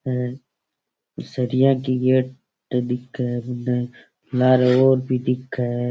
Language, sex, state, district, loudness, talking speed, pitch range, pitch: Rajasthani, male, Rajasthan, Churu, -21 LUFS, 120 wpm, 125-130 Hz, 125 Hz